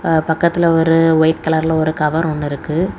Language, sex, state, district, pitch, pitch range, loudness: Tamil, female, Tamil Nadu, Kanyakumari, 160 Hz, 155-165 Hz, -15 LUFS